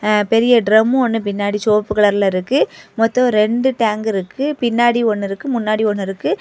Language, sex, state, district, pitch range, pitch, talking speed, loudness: Tamil, female, Tamil Nadu, Kanyakumari, 210-240 Hz, 220 Hz, 170 wpm, -16 LUFS